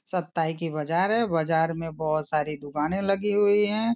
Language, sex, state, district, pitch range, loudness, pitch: Hindi, male, Maharashtra, Nagpur, 155-205 Hz, -25 LUFS, 165 Hz